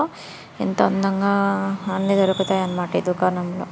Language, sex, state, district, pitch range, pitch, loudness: Telugu, female, Andhra Pradesh, Srikakulam, 185-195 Hz, 190 Hz, -21 LUFS